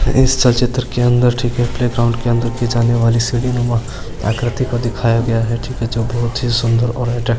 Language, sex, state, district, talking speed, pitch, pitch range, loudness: Hindi, male, Rajasthan, Churu, 185 wpm, 120 Hz, 115-125 Hz, -16 LUFS